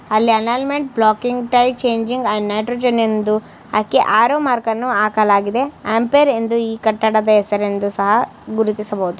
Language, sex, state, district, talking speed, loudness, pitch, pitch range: Kannada, female, Karnataka, Mysore, 115 wpm, -16 LUFS, 225 Hz, 210-245 Hz